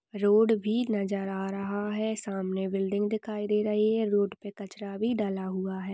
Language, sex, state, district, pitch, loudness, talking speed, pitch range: Hindi, female, Maharashtra, Nagpur, 205 Hz, -29 LUFS, 190 wpm, 195-215 Hz